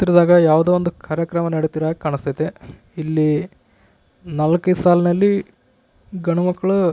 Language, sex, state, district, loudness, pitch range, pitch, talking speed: Kannada, male, Karnataka, Raichur, -18 LUFS, 155-180 Hz, 170 Hz, 115 wpm